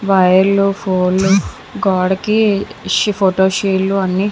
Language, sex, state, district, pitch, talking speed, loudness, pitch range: Telugu, female, Andhra Pradesh, Visakhapatnam, 195 Hz, 110 wpm, -14 LUFS, 190-200 Hz